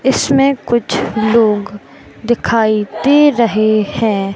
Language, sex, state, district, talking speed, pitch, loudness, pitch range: Hindi, male, Madhya Pradesh, Katni, 95 wpm, 225 Hz, -13 LUFS, 210-245 Hz